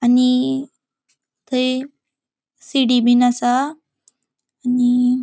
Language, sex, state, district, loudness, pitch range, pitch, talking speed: Konkani, female, Goa, North and South Goa, -18 LUFS, 245-265 Hz, 255 Hz, 80 wpm